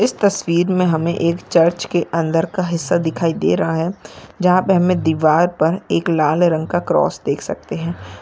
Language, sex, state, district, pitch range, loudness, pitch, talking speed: Hindi, female, Maharashtra, Sindhudurg, 160-180 Hz, -17 LUFS, 170 Hz, 195 wpm